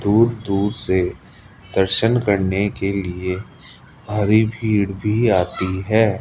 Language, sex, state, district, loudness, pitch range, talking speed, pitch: Hindi, male, Rajasthan, Jaipur, -19 LUFS, 95-110 Hz, 115 wpm, 100 Hz